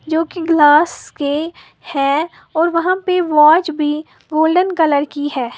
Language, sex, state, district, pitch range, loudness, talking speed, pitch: Hindi, female, Uttar Pradesh, Lalitpur, 295-335 Hz, -15 LUFS, 150 wpm, 315 Hz